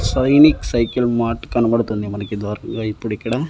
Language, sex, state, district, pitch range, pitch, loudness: Telugu, male, Andhra Pradesh, Annamaya, 105-120 Hz, 115 Hz, -18 LUFS